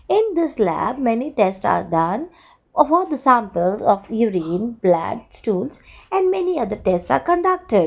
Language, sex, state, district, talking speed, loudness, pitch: English, female, Gujarat, Valsad, 150 wpm, -19 LUFS, 235 Hz